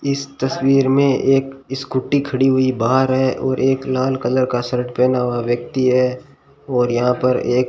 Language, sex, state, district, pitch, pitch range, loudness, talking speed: Hindi, male, Rajasthan, Bikaner, 130 Hz, 125-135 Hz, -18 LUFS, 180 wpm